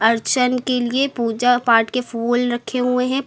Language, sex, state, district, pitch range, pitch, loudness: Hindi, female, Uttar Pradesh, Lucknow, 235-250 Hz, 245 Hz, -18 LUFS